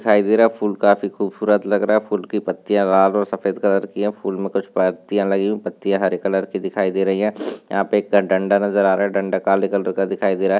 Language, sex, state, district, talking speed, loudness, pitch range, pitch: Hindi, male, Rajasthan, Churu, 285 wpm, -19 LUFS, 95-105 Hz, 100 Hz